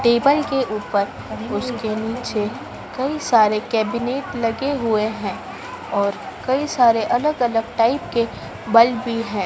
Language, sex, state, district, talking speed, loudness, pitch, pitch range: Hindi, female, Madhya Pradesh, Dhar, 135 wpm, -20 LUFS, 230 Hz, 220-255 Hz